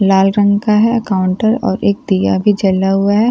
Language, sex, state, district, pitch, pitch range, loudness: Hindi, female, Bihar, Katihar, 200 Hz, 195-210 Hz, -13 LUFS